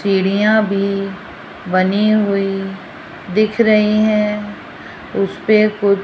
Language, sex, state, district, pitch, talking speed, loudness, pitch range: Hindi, female, Rajasthan, Jaipur, 205 Hz, 100 wpm, -16 LUFS, 195-215 Hz